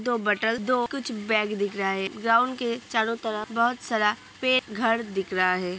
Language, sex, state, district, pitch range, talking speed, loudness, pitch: Hindi, female, Uttar Pradesh, Hamirpur, 210-240 Hz, 195 wpm, -25 LUFS, 225 Hz